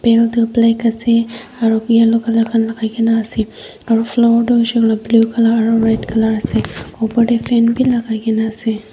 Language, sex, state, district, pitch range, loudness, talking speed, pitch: Nagamese, female, Nagaland, Dimapur, 225-235 Hz, -15 LUFS, 155 wpm, 230 Hz